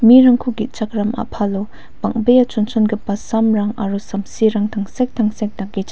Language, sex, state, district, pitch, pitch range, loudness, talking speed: Garo, female, Meghalaya, West Garo Hills, 215 Hz, 205-225 Hz, -17 LUFS, 130 wpm